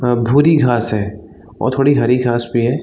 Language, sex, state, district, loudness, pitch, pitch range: Hindi, male, Chhattisgarh, Bilaspur, -15 LUFS, 120 Hz, 115-130 Hz